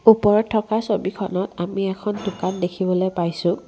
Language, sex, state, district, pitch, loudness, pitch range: Assamese, female, Assam, Kamrup Metropolitan, 195 Hz, -22 LUFS, 185-210 Hz